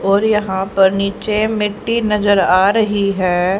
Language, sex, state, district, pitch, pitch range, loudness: Hindi, female, Haryana, Rohtak, 200 Hz, 190-210 Hz, -15 LUFS